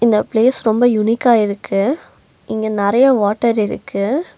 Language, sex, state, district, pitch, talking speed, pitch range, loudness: Tamil, female, Tamil Nadu, Nilgiris, 225 Hz, 125 wpm, 210-245 Hz, -16 LUFS